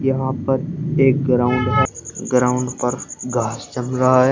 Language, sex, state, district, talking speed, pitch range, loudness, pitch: Hindi, male, Uttar Pradesh, Shamli, 150 wpm, 125-135 Hz, -19 LUFS, 125 Hz